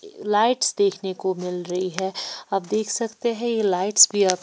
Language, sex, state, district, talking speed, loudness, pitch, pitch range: Hindi, female, Chhattisgarh, Raipur, 190 wpm, -22 LUFS, 200 Hz, 185-225 Hz